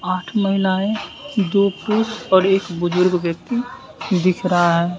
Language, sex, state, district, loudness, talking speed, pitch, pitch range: Hindi, male, Bihar, West Champaran, -19 LUFS, 130 wpm, 190 Hz, 180-205 Hz